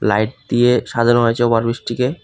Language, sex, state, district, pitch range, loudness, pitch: Bengali, male, Tripura, West Tripura, 115-125 Hz, -16 LUFS, 120 Hz